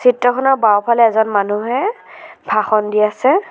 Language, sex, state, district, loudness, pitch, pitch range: Assamese, female, Assam, Sonitpur, -15 LUFS, 225 Hz, 210-250 Hz